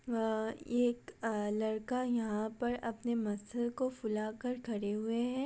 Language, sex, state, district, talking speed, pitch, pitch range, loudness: Hindi, female, Uttar Pradesh, Budaun, 165 wpm, 230 Hz, 215-245 Hz, -36 LUFS